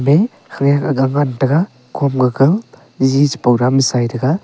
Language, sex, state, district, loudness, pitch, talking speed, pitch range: Wancho, male, Arunachal Pradesh, Longding, -15 LUFS, 135 Hz, 110 wpm, 130-145 Hz